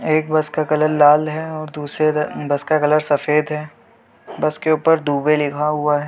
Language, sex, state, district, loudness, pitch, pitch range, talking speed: Hindi, male, Chhattisgarh, Bilaspur, -18 LUFS, 150 Hz, 150-155 Hz, 205 wpm